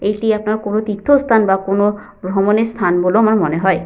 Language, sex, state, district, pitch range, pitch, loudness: Bengali, female, West Bengal, Paschim Medinipur, 190-220 Hz, 205 Hz, -15 LUFS